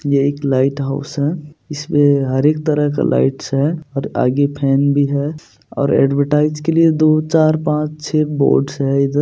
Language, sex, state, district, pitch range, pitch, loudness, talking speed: Hindi, male, Bihar, Supaul, 140-155 Hz, 145 Hz, -16 LUFS, 180 wpm